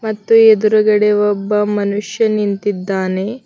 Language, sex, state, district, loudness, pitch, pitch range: Kannada, female, Karnataka, Bidar, -14 LUFS, 210 Hz, 205-215 Hz